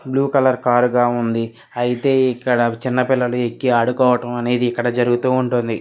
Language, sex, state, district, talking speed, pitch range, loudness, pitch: Telugu, male, Telangana, Karimnagar, 145 wpm, 120-130 Hz, -18 LUFS, 125 Hz